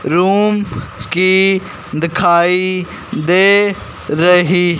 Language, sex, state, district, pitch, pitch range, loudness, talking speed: Hindi, male, Punjab, Fazilka, 180 Hz, 175-195 Hz, -13 LUFS, 75 wpm